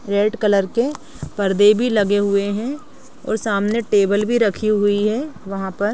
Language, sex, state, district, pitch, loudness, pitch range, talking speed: Hindi, female, Chhattisgarh, Rajnandgaon, 210 Hz, -18 LUFS, 200-230 Hz, 170 wpm